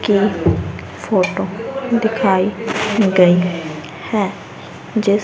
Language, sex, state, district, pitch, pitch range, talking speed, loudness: Hindi, female, Haryana, Rohtak, 200 Hz, 180-215 Hz, 70 wpm, -17 LUFS